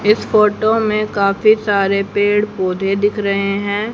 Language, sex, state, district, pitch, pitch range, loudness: Hindi, female, Haryana, Jhajjar, 205 Hz, 200-215 Hz, -15 LUFS